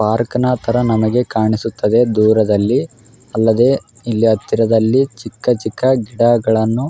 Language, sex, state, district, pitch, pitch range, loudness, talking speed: Kannada, male, Karnataka, Raichur, 115 Hz, 110-125 Hz, -15 LUFS, 115 wpm